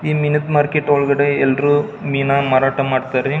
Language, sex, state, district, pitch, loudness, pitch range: Kannada, male, Karnataka, Belgaum, 140 Hz, -16 LUFS, 135-150 Hz